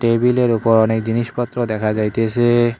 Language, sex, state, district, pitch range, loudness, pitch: Bengali, male, West Bengal, Cooch Behar, 110-120 Hz, -17 LUFS, 115 Hz